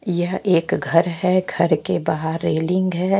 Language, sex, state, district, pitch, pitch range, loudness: Hindi, female, Haryana, Jhajjar, 175 Hz, 165-185 Hz, -20 LUFS